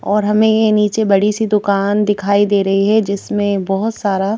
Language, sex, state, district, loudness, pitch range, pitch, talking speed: Hindi, female, Madhya Pradesh, Bhopal, -15 LUFS, 200-210 Hz, 205 Hz, 190 wpm